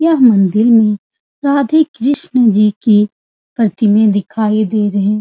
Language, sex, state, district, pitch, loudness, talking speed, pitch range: Hindi, female, Bihar, Supaul, 220 Hz, -12 LUFS, 125 wpm, 210-275 Hz